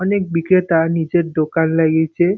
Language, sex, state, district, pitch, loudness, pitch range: Bengali, male, West Bengal, North 24 Parganas, 165 Hz, -16 LUFS, 160-180 Hz